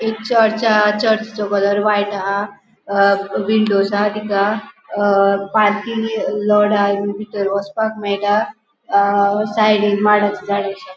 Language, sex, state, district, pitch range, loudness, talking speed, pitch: Konkani, female, Goa, North and South Goa, 200-215 Hz, -16 LUFS, 130 wpm, 205 Hz